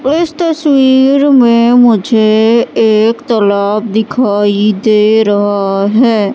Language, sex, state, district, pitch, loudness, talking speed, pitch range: Hindi, female, Madhya Pradesh, Katni, 220 Hz, -9 LUFS, 95 wpm, 210-250 Hz